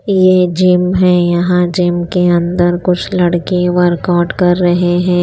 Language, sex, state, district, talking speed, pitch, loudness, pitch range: Hindi, female, Chandigarh, Chandigarh, 150 wpm, 180 Hz, -12 LUFS, 175-180 Hz